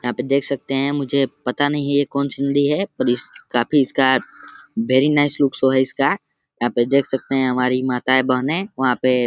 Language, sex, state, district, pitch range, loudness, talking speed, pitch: Hindi, male, Uttar Pradesh, Deoria, 125-140 Hz, -19 LUFS, 140 wpm, 135 Hz